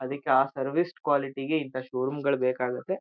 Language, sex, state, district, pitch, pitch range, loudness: Kannada, male, Karnataka, Shimoga, 135 Hz, 130-145 Hz, -28 LUFS